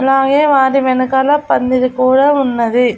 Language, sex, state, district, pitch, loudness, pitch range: Telugu, female, Andhra Pradesh, Annamaya, 265 Hz, -12 LUFS, 255-275 Hz